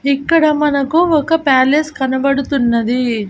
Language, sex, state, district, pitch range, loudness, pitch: Telugu, female, Andhra Pradesh, Annamaya, 260-305 Hz, -14 LUFS, 280 Hz